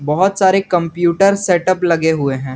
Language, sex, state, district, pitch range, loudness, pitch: Hindi, male, Jharkhand, Garhwa, 160-190 Hz, -14 LUFS, 175 Hz